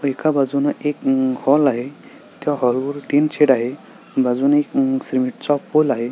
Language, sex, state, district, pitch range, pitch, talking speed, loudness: Marathi, male, Maharashtra, Solapur, 130-155 Hz, 145 Hz, 165 wpm, -19 LUFS